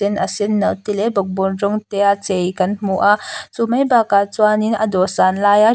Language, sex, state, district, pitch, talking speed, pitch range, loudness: Mizo, female, Mizoram, Aizawl, 205 Hz, 220 wpm, 195-215 Hz, -17 LUFS